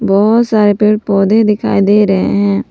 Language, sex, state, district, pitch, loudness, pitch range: Hindi, female, Jharkhand, Palamu, 205 Hz, -11 LUFS, 195-215 Hz